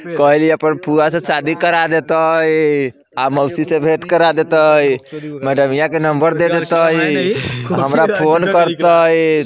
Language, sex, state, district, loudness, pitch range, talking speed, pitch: Bajjika, male, Bihar, Vaishali, -14 LUFS, 145-165 Hz, 160 wpm, 160 Hz